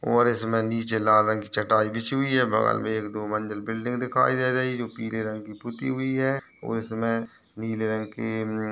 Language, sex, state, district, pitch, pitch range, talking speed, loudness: Hindi, male, Uttar Pradesh, Ghazipur, 110 Hz, 110-120 Hz, 235 wpm, -26 LUFS